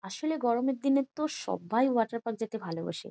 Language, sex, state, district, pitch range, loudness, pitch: Bengali, female, West Bengal, Jhargram, 225-275 Hz, -31 LUFS, 235 Hz